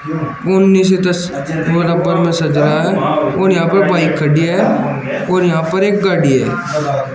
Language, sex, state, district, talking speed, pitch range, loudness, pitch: Hindi, male, Uttar Pradesh, Shamli, 115 wpm, 155-185 Hz, -13 LUFS, 170 Hz